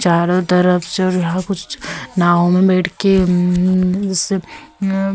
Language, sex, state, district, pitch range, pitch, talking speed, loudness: Hindi, female, Goa, North and South Goa, 180-195 Hz, 185 Hz, 140 wpm, -16 LUFS